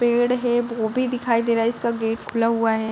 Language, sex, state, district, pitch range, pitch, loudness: Hindi, female, Uttar Pradesh, Budaun, 225-240 Hz, 235 Hz, -22 LUFS